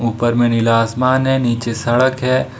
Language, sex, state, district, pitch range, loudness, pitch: Hindi, male, Jharkhand, Ranchi, 115-130 Hz, -15 LUFS, 120 Hz